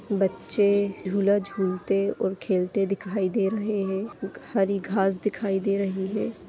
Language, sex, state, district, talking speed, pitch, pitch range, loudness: Hindi, female, Rajasthan, Nagaur, 150 wpm, 195 Hz, 195-200 Hz, -26 LUFS